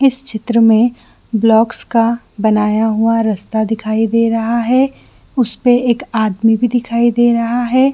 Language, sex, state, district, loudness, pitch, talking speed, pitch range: Hindi, female, Jharkhand, Jamtara, -14 LUFS, 230 Hz, 160 wpm, 220-245 Hz